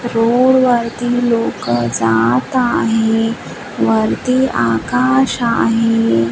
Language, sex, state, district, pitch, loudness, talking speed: Marathi, female, Maharashtra, Washim, 225 Hz, -14 LUFS, 65 wpm